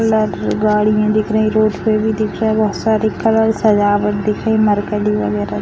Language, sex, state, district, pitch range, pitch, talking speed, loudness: Hindi, female, Bihar, Samastipur, 210-220 Hz, 215 Hz, 215 wpm, -15 LUFS